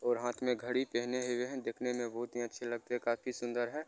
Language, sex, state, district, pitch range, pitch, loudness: Maithili, male, Bihar, Begusarai, 120-125 Hz, 120 Hz, -37 LUFS